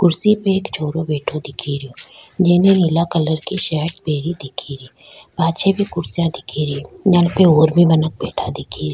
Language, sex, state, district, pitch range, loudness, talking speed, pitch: Rajasthani, female, Rajasthan, Nagaur, 150-180 Hz, -17 LUFS, 190 wpm, 160 Hz